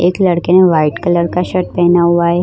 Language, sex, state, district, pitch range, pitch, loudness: Hindi, female, Goa, North and South Goa, 170-180 Hz, 175 Hz, -12 LUFS